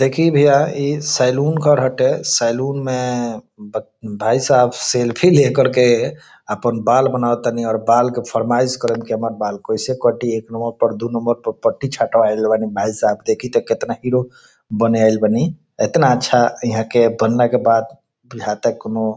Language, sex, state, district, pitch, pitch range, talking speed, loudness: Bhojpuri, male, Bihar, Saran, 120 Hz, 115-130 Hz, 170 wpm, -17 LUFS